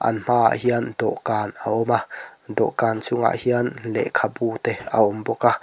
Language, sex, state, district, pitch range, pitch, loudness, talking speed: Mizo, male, Mizoram, Aizawl, 110-120 Hz, 115 Hz, -22 LUFS, 180 wpm